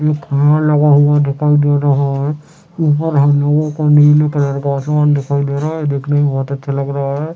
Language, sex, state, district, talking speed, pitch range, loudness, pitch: Hindi, male, Chhattisgarh, Raigarh, 220 wpm, 140-150 Hz, -14 LUFS, 145 Hz